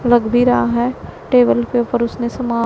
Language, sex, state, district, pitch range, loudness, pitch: Hindi, female, Punjab, Pathankot, 235-245 Hz, -16 LUFS, 240 Hz